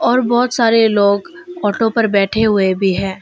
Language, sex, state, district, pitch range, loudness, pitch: Hindi, female, Arunachal Pradesh, Longding, 200-235 Hz, -14 LUFS, 220 Hz